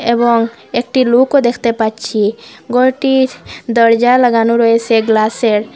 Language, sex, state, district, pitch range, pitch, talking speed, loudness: Bengali, female, Assam, Hailakandi, 225-250 Hz, 235 Hz, 105 wpm, -12 LUFS